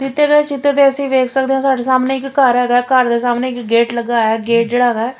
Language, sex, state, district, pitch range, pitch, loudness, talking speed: Punjabi, female, Punjab, Fazilka, 240-270 Hz, 255 Hz, -14 LUFS, 275 wpm